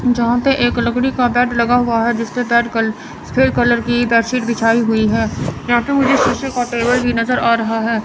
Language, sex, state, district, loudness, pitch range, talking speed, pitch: Hindi, female, Chandigarh, Chandigarh, -15 LUFS, 230-245 Hz, 200 wpm, 240 Hz